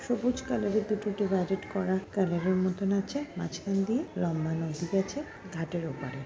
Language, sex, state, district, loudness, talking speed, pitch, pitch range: Bengali, female, West Bengal, Kolkata, -31 LUFS, 145 wpm, 195 Hz, 175-215 Hz